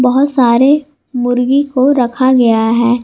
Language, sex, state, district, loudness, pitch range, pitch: Hindi, female, Jharkhand, Garhwa, -11 LUFS, 245-275 Hz, 255 Hz